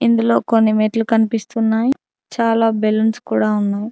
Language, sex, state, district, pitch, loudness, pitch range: Telugu, female, Telangana, Mahabubabad, 225 Hz, -17 LUFS, 215-230 Hz